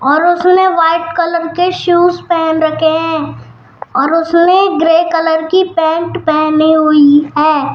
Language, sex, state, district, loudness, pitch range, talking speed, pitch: Hindi, female, Rajasthan, Jaipur, -11 LUFS, 310-345 Hz, 140 wpm, 325 Hz